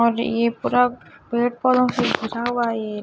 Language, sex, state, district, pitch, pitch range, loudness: Hindi, female, Chhattisgarh, Raipur, 235 Hz, 230-245 Hz, -21 LUFS